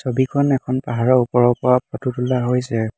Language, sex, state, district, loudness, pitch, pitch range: Assamese, male, Assam, Hailakandi, -18 LUFS, 125 Hz, 120-130 Hz